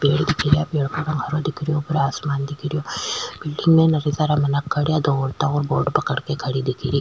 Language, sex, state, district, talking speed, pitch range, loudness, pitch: Rajasthani, female, Rajasthan, Nagaur, 155 wpm, 140-155 Hz, -21 LUFS, 150 Hz